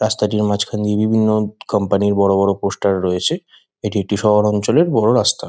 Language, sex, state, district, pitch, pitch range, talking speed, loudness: Bengali, male, West Bengal, Kolkata, 105 Hz, 100-105 Hz, 185 wpm, -17 LUFS